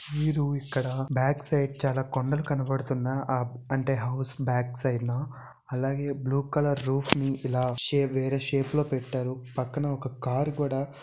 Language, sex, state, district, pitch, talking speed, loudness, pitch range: Telugu, male, Andhra Pradesh, Visakhapatnam, 135 Hz, 145 wpm, -28 LUFS, 130-140 Hz